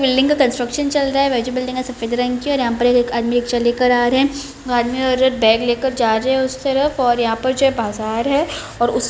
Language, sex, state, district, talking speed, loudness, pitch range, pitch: Hindi, female, Rajasthan, Churu, 265 wpm, -17 LUFS, 240-270 Hz, 255 Hz